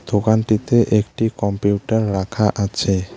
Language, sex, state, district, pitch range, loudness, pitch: Bengali, male, West Bengal, Alipurduar, 100-110 Hz, -18 LUFS, 105 Hz